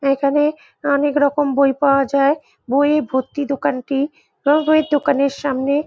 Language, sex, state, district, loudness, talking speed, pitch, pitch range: Bengali, female, West Bengal, Jhargram, -18 LUFS, 155 wpm, 285 Hz, 275-295 Hz